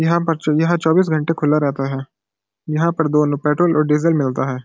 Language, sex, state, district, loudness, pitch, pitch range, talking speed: Hindi, male, Uttarakhand, Uttarkashi, -17 LUFS, 150 Hz, 135-165 Hz, 205 wpm